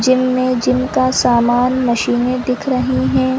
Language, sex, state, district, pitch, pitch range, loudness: Hindi, female, Chhattisgarh, Bilaspur, 250 Hz, 240-255 Hz, -15 LUFS